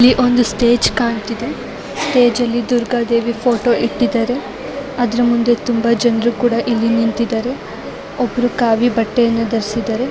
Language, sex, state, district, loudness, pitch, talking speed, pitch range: Kannada, female, Karnataka, Raichur, -16 LUFS, 240 Hz, 105 wpm, 230-245 Hz